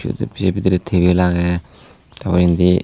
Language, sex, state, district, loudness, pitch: Chakma, male, Tripura, Unakoti, -17 LUFS, 90 Hz